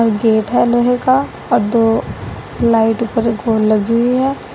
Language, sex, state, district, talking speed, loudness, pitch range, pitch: Hindi, female, Assam, Sonitpur, 160 wpm, -14 LUFS, 225-240 Hz, 230 Hz